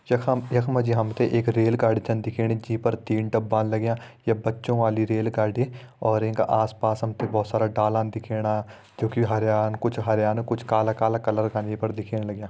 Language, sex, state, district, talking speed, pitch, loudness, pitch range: Hindi, male, Uttarakhand, Uttarkashi, 190 wpm, 110 Hz, -25 LUFS, 110-115 Hz